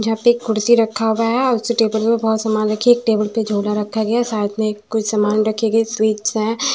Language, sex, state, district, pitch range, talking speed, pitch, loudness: Hindi, female, Maharashtra, Washim, 215-230 Hz, 260 wpm, 220 Hz, -17 LUFS